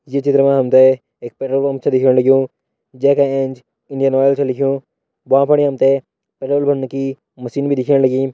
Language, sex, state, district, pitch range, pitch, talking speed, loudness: Hindi, male, Uttarakhand, Tehri Garhwal, 130-140 Hz, 135 Hz, 210 wpm, -15 LUFS